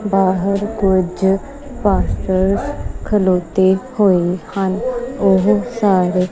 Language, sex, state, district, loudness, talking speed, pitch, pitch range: Punjabi, female, Punjab, Kapurthala, -16 LUFS, 75 wpm, 195 Hz, 185-210 Hz